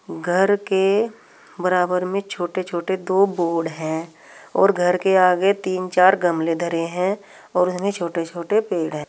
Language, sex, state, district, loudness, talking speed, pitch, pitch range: Hindi, female, Uttar Pradesh, Saharanpur, -20 LUFS, 160 wpm, 180 Hz, 170-195 Hz